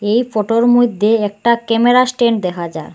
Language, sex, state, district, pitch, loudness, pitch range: Bengali, female, Assam, Hailakandi, 230 Hz, -14 LUFS, 210-240 Hz